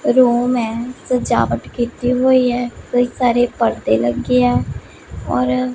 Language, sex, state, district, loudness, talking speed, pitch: Punjabi, female, Punjab, Pathankot, -17 LUFS, 125 wpm, 240 Hz